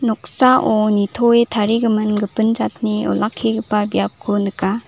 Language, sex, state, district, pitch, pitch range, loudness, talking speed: Garo, female, Meghalaya, South Garo Hills, 215 Hz, 205-230 Hz, -17 LUFS, 100 wpm